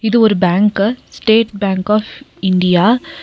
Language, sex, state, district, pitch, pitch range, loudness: Tamil, female, Tamil Nadu, Nilgiris, 210 Hz, 195-235 Hz, -14 LUFS